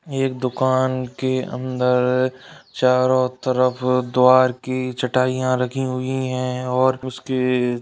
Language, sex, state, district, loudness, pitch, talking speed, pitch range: Hindi, male, Uttarakhand, Uttarkashi, -20 LUFS, 130 Hz, 115 wpm, 125-130 Hz